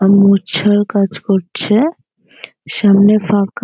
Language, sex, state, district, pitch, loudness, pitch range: Bengali, female, West Bengal, North 24 Parganas, 200 Hz, -13 LUFS, 195-205 Hz